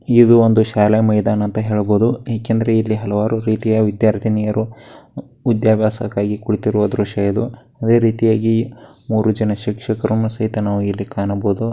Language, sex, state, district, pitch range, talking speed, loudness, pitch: Kannada, male, Karnataka, Dakshina Kannada, 105-115 Hz, 115 wpm, -17 LUFS, 110 Hz